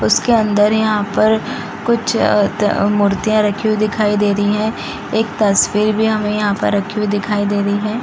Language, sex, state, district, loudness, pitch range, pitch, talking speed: Hindi, female, Bihar, East Champaran, -16 LUFS, 205-220 Hz, 210 Hz, 195 wpm